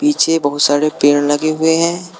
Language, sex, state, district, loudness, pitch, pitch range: Hindi, male, Uttar Pradesh, Lucknow, -14 LUFS, 155 Hz, 145-170 Hz